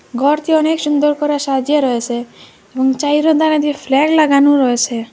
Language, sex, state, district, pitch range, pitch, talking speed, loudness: Bengali, female, Assam, Hailakandi, 260-300 Hz, 290 Hz, 140 wpm, -14 LUFS